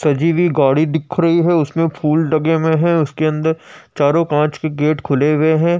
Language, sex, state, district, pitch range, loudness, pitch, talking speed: Hindi, male, Uttar Pradesh, Jyotiba Phule Nagar, 150-165 Hz, -15 LUFS, 160 Hz, 205 wpm